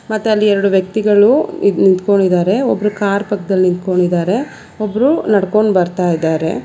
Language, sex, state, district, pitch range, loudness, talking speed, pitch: Kannada, female, Karnataka, Bangalore, 185-210 Hz, -14 LUFS, 115 wpm, 200 Hz